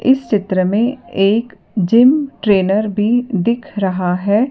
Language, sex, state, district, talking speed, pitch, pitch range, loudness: Hindi, female, Madhya Pradesh, Dhar, 135 wpm, 210 Hz, 195-240 Hz, -15 LUFS